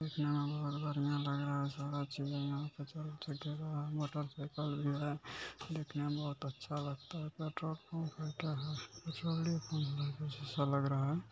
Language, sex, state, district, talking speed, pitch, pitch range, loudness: Hindi, male, Bihar, Araria, 75 wpm, 145 Hz, 140-155 Hz, -40 LUFS